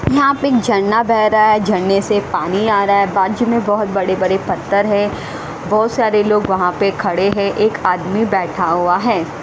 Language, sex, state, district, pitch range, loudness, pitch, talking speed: Hindi, female, Haryana, Rohtak, 190-215 Hz, -15 LUFS, 200 Hz, 205 wpm